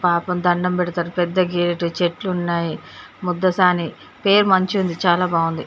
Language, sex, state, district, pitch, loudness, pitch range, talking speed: Telugu, female, Telangana, Karimnagar, 180 Hz, -19 LUFS, 170-185 Hz, 135 wpm